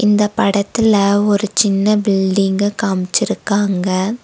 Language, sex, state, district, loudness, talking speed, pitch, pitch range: Tamil, female, Tamil Nadu, Nilgiris, -15 LUFS, 85 wpm, 200 Hz, 195-210 Hz